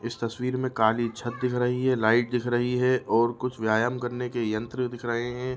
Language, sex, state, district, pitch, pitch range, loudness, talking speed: Hindi, male, Chhattisgarh, Raigarh, 120 Hz, 115-125 Hz, -26 LUFS, 225 wpm